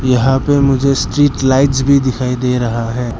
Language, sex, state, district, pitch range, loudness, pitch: Hindi, male, Arunachal Pradesh, Lower Dibang Valley, 125-140 Hz, -13 LUFS, 130 Hz